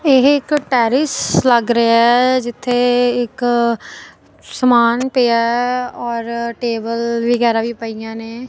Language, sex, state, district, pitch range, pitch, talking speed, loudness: Punjabi, female, Punjab, Kapurthala, 235-250 Hz, 240 Hz, 115 wpm, -16 LUFS